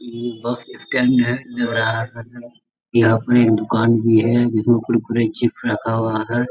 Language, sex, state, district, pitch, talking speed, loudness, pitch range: Hindi, male, Bihar, Darbhanga, 115 Hz, 140 wpm, -18 LUFS, 115-120 Hz